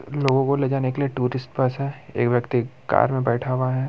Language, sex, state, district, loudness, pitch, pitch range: Hindi, male, Bihar, Muzaffarpur, -23 LUFS, 130 Hz, 125-135 Hz